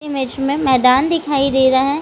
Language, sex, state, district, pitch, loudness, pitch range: Hindi, female, Bihar, Gaya, 275 Hz, -15 LUFS, 260-285 Hz